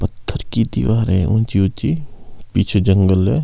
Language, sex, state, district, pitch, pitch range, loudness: Hindi, male, Himachal Pradesh, Shimla, 105 Hz, 95-115 Hz, -17 LUFS